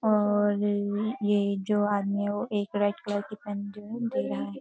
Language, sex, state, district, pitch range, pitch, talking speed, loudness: Hindi, female, Uttarakhand, Uttarkashi, 205-210 Hz, 205 Hz, 210 wpm, -28 LUFS